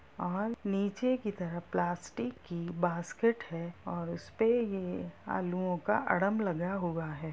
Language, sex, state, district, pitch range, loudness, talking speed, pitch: Hindi, female, Bihar, Sitamarhi, 170-210 Hz, -34 LUFS, 140 wpm, 180 Hz